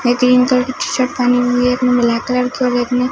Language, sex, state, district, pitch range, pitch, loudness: Hindi, female, Punjab, Fazilka, 245-250 Hz, 250 Hz, -15 LUFS